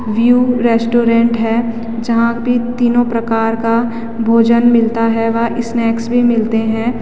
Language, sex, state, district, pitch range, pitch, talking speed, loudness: Hindi, female, Uttarakhand, Tehri Garhwal, 230-235 Hz, 230 Hz, 135 wpm, -14 LUFS